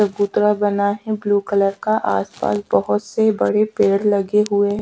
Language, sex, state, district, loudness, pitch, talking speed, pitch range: Hindi, female, Haryana, Charkhi Dadri, -18 LUFS, 205 Hz, 185 wpm, 195-210 Hz